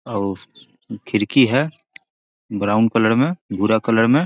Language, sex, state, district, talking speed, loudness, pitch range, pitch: Magahi, male, Bihar, Jahanabad, 125 wpm, -18 LUFS, 105-135 Hz, 115 Hz